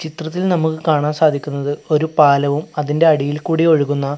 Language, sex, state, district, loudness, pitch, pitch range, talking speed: Malayalam, male, Kerala, Kasaragod, -16 LUFS, 150 Hz, 145-160 Hz, 145 wpm